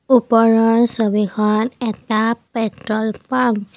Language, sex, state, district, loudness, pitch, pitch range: Assamese, female, Assam, Kamrup Metropolitan, -17 LUFS, 225 Hz, 215-235 Hz